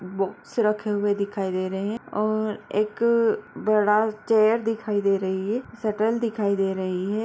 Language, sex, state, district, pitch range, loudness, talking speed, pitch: Hindi, female, Bihar, Jahanabad, 195-220 Hz, -24 LUFS, 165 wpm, 210 Hz